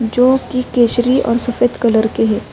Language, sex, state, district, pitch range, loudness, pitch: Urdu, female, Uttar Pradesh, Budaun, 230-250 Hz, -14 LUFS, 245 Hz